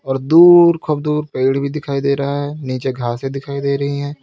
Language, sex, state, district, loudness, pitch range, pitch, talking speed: Hindi, male, Uttar Pradesh, Lalitpur, -16 LUFS, 135-150 Hz, 140 Hz, 225 wpm